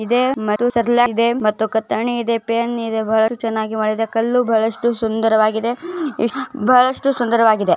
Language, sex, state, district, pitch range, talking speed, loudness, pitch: Kannada, female, Karnataka, Bijapur, 220-245 Hz, 130 wpm, -18 LUFS, 230 Hz